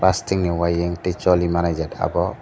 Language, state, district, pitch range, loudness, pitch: Kokborok, Tripura, Dhalai, 85-90 Hz, -21 LUFS, 85 Hz